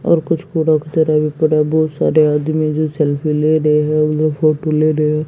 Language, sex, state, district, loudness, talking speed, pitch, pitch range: Hindi, female, Haryana, Jhajjar, -15 LUFS, 205 wpm, 155 Hz, 150-155 Hz